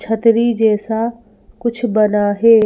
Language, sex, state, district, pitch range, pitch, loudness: Hindi, female, Madhya Pradesh, Bhopal, 215-235 Hz, 225 Hz, -15 LUFS